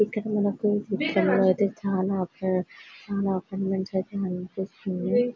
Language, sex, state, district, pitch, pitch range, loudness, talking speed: Telugu, female, Telangana, Karimnagar, 195 Hz, 185-205 Hz, -26 LUFS, 90 wpm